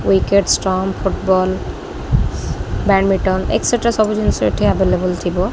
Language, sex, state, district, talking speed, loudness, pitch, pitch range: Odia, female, Odisha, Khordha, 95 wpm, -16 LUFS, 190 Hz, 185-200 Hz